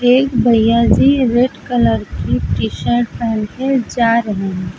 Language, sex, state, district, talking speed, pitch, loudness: Hindi, female, Uttar Pradesh, Lucknow, 165 wpm, 230 Hz, -15 LUFS